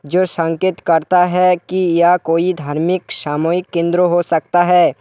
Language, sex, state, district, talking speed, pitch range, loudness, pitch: Hindi, male, West Bengal, Alipurduar, 155 wpm, 165-180 Hz, -15 LUFS, 175 Hz